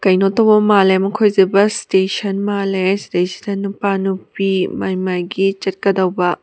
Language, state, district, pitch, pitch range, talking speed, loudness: Manipuri, Manipur, Imphal West, 195 Hz, 190-200 Hz, 130 wpm, -16 LUFS